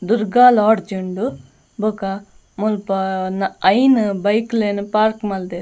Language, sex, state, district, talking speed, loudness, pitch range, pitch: Tulu, female, Karnataka, Dakshina Kannada, 115 wpm, -17 LUFS, 190-220 Hz, 205 Hz